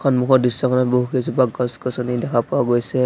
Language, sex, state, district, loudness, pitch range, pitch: Assamese, male, Assam, Sonitpur, -19 LUFS, 125-130 Hz, 125 Hz